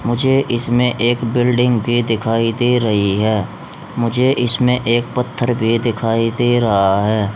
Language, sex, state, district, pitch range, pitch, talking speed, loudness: Hindi, male, Haryana, Rohtak, 115-120 Hz, 120 Hz, 145 wpm, -16 LUFS